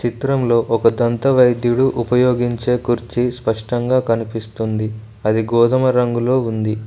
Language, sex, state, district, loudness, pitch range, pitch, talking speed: Telugu, male, Telangana, Mahabubabad, -17 LUFS, 115-125 Hz, 120 Hz, 105 wpm